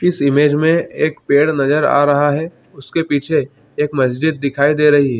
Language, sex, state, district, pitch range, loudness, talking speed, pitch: Hindi, male, Chhattisgarh, Bilaspur, 140-155 Hz, -15 LUFS, 195 wpm, 145 Hz